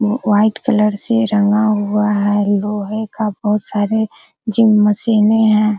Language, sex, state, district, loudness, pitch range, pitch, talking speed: Hindi, female, Bihar, Araria, -15 LUFS, 205-220 Hz, 210 Hz, 135 wpm